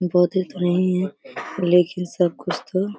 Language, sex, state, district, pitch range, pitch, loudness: Hindi, female, Uttar Pradesh, Deoria, 180-185 Hz, 180 Hz, -21 LUFS